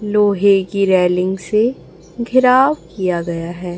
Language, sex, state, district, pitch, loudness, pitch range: Hindi, female, Chhattisgarh, Raipur, 195 Hz, -15 LUFS, 180-215 Hz